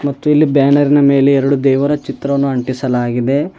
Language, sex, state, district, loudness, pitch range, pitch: Kannada, male, Karnataka, Bidar, -13 LUFS, 135-145 Hz, 140 Hz